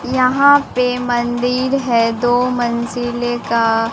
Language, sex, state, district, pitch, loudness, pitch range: Hindi, female, Bihar, Katihar, 245 Hz, -16 LUFS, 235-255 Hz